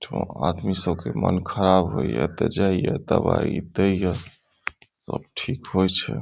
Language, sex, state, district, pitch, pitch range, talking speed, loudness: Maithili, male, Bihar, Saharsa, 95 Hz, 90-95 Hz, 185 wpm, -24 LUFS